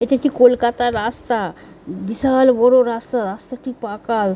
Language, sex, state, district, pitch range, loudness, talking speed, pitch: Bengali, female, West Bengal, Dakshin Dinajpur, 225-255 Hz, -17 LUFS, 125 wpm, 245 Hz